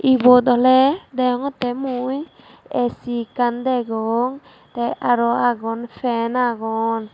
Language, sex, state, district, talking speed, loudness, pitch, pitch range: Chakma, female, Tripura, Dhalai, 100 wpm, -19 LUFS, 245 Hz, 235-255 Hz